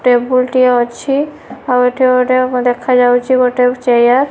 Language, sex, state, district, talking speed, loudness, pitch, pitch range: Odia, female, Odisha, Nuapada, 155 wpm, -12 LUFS, 250 Hz, 245-255 Hz